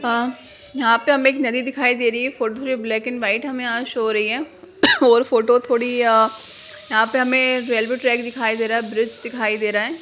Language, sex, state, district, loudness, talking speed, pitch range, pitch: Hindi, female, Bihar, Jamui, -19 LUFS, 235 wpm, 225-260 Hz, 240 Hz